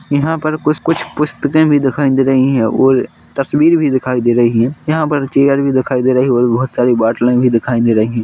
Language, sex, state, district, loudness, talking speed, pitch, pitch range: Hindi, male, Chhattisgarh, Korba, -13 LUFS, 240 wpm, 135 Hz, 125-145 Hz